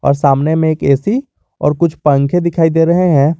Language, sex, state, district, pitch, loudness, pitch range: Hindi, male, Jharkhand, Garhwa, 160 Hz, -13 LUFS, 145-170 Hz